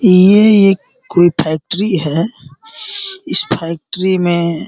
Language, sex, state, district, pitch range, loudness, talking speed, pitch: Hindi, male, Uttar Pradesh, Gorakhpur, 170-220 Hz, -13 LUFS, 115 wpm, 190 Hz